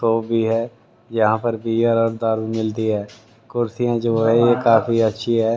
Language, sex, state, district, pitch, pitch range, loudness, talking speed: Hindi, male, Haryana, Rohtak, 115 Hz, 110-115 Hz, -19 LUFS, 185 wpm